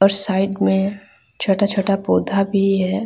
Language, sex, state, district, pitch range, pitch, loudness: Hindi, female, Bihar, Darbhanga, 195-200 Hz, 195 Hz, -18 LUFS